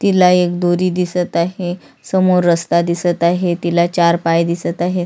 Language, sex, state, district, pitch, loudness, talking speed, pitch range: Marathi, female, Maharashtra, Sindhudurg, 175 Hz, -15 LUFS, 165 wpm, 170-180 Hz